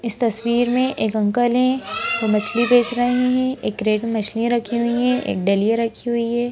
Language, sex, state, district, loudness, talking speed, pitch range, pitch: Hindi, female, Madhya Pradesh, Bhopal, -18 LUFS, 210 wpm, 225-245 Hz, 235 Hz